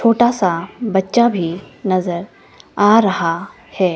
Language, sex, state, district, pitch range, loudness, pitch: Hindi, female, Himachal Pradesh, Shimla, 175-225 Hz, -17 LUFS, 190 Hz